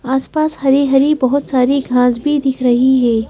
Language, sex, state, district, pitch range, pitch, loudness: Hindi, female, Madhya Pradesh, Bhopal, 250-280 Hz, 265 Hz, -14 LUFS